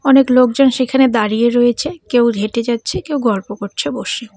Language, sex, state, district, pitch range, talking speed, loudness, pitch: Bengali, female, West Bengal, Cooch Behar, 225-265 Hz, 165 wpm, -15 LUFS, 240 Hz